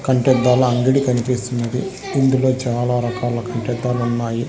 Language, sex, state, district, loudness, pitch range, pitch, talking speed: Telugu, male, Andhra Pradesh, Sri Satya Sai, -18 LUFS, 120-130 Hz, 125 Hz, 105 wpm